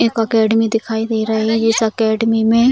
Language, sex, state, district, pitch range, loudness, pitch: Hindi, female, Bihar, Jamui, 220-225 Hz, -15 LUFS, 225 Hz